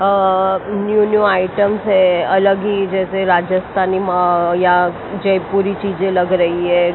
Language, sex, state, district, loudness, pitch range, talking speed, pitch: Hindi, female, Maharashtra, Mumbai Suburban, -15 LUFS, 180-195 Hz, 120 wpm, 190 Hz